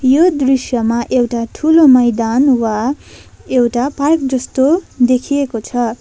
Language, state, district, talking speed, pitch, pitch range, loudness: Nepali, West Bengal, Darjeeling, 110 wpm, 255 Hz, 240-280 Hz, -14 LUFS